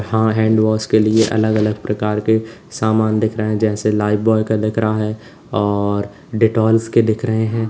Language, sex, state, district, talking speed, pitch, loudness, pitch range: Hindi, male, Uttar Pradesh, Lalitpur, 180 wpm, 110 Hz, -17 LUFS, 105-110 Hz